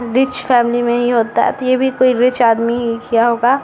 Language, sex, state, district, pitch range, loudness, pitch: Hindi, male, Bihar, Samastipur, 235-255 Hz, -14 LUFS, 240 Hz